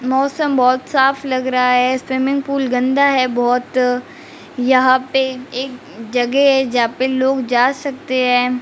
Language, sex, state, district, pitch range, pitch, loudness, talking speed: Hindi, female, Rajasthan, Bikaner, 250-270 Hz, 255 Hz, -16 LUFS, 155 wpm